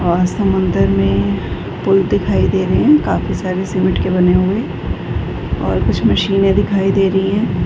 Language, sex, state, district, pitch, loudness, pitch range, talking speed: Hindi, female, Uttar Pradesh, Budaun, 185 Hz, -15 LUFS, 175-195 Hz, 165 wpm